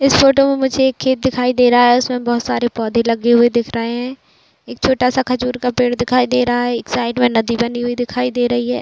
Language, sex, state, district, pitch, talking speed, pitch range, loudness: Hindi, female, Chhattisgarh, Bastar, 245 Hz, 265 wpm, 240-250 Hz, -15 LUFS